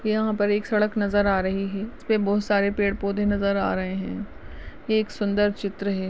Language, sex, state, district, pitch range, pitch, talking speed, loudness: Hindi, female, Rajasthan, Nagaur, 200-210 Hz, 205 Hz, 205 wpm, -24 LUFS